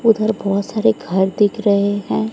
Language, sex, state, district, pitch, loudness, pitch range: Hindi, female, Odisha, Sambalpur, 200 Hz, -17 LUFS, 190-215 Hz